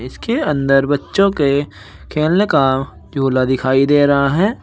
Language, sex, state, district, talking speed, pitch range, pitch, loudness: Hindi, male, Uttar Pradesh, Shamli, 140 wpm, 130-155 Hz, 140 Hz, -15 LUFS